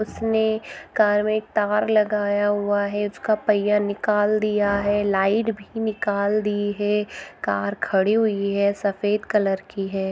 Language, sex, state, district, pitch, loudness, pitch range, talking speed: Hindi, female, Bihar, Araria, 205 Hz, -22 LUFS, 200-215 Hz, 165 wpm